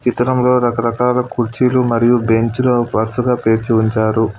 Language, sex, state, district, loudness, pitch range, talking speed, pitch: Telugu, male, Telangana, Hyderabad, -15 LUFS, 115-125 Hz, 110 wpm, 120 Hz